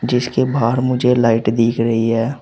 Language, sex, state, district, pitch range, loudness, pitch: Hindi, male, Uttar Pradesh, Saharanpur, 115-125 Hz, -16 LUFS, 115 Hz